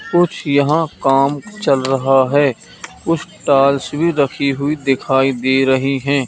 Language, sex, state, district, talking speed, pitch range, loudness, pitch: Hindi, male, Madhya Pradesh, Katni, 145 wpm, 135-145 Hz, -16 LUFS, 140 Hz